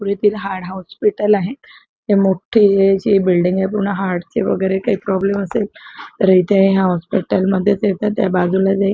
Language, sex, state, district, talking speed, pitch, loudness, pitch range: Marathi, female, Maharashtra, Chandrapur, 170 wpm, 195 Hz, -16 LUFS, 190-205 Hz